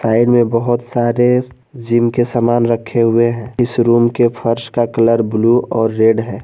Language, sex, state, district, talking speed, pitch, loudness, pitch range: Hindi, male, Jharkhand, Garhwa, 185 wpm, 120 Hz, -14 LUFS, 115-120 Hz